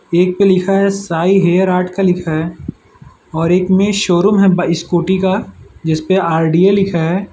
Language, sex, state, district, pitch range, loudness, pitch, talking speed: Hindi, male, Gujarat, Valsad, 170-195 Hz, -13 LUFS, 180 Hz, 170 wpm